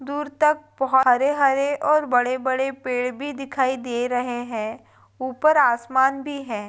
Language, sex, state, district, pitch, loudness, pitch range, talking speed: Hindi, female, Rajasthan, Nagaur, 265 Hz, -22 LUFS, 245-280 Hz, 145 wpm